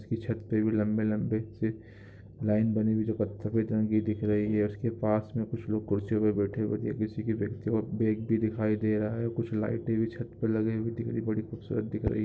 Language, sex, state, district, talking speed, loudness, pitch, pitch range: Hindi, male, Andhra Pradesh, Guntur, 175 wpm, -30 LUFS, 110 Hz, 105-110 Hz